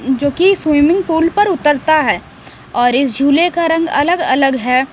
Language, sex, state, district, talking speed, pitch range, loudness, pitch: Hindi, female, Bihar, West Champaran, 170 wpm, 270-335 Hz, -13 LUFS, 300 Hz